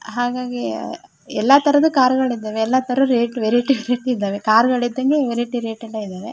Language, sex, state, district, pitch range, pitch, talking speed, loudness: Kannada, female, Karnataka, Shimoga, 225-260 Hz, 245 Hz, 160 wpm, -18 LUFS